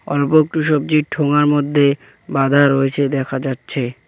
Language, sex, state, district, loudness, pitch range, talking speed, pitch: Bengali, male, West Bengal, Cooch Behar, -16 LUFS, 135-150 Hz, 130 wpm, 145 Hz